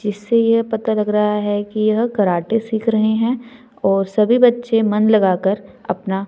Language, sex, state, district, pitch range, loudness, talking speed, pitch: Hindi, female, Chandigarh, Chandigarh, 205-230 Hz, -17 LUFS, 170 wpm, 215 Hz